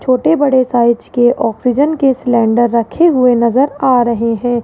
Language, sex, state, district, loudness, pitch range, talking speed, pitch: Hindi, female, Rajasthan, Jaipur, -12 LUFS, 235-270 Hz, 170 wpm, 245 Hz